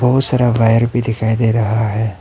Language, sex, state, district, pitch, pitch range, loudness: Hindi, male, Arunachal Pradesh, Papum Pare, 115 Hz, 110-120 Hz, -14 LUFS